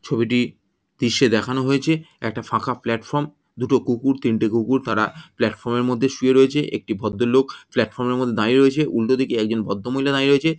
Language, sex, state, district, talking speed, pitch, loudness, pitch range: Bengali, male, West Bengal, Jhargram, 185 wpm, 125 Hz, -20 LUFS, 115-135 Hz